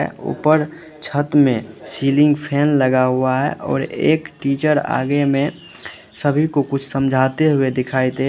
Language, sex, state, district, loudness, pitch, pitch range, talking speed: Hindi, male, Uttar Pradesh, Lalitpur, -18 LUFS, 140 Hz, 130-150 Hz, 145 wpm